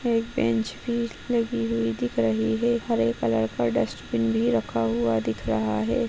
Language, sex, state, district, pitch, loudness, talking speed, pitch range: Hindi, female, Maharashtra, Solapur, 115 Hz, -25 LUFS, 180 wpm, 110-125 Hz